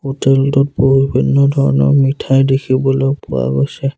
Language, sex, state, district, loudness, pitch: Assamese, male, Assam, Sonitpur, -13 LUFS, 135 Hz